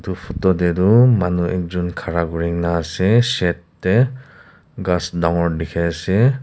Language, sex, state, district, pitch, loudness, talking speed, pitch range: Nagamese, male, Nagaland, Kohima, 90 Hz, -18 LUFS, 140 wpm, 85-95 Hz